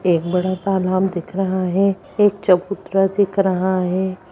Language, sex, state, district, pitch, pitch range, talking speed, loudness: Hindi, female, Bihar, Vaishali, 190 Hz, 185-195 Hz, 155 wpm, -19 LUFS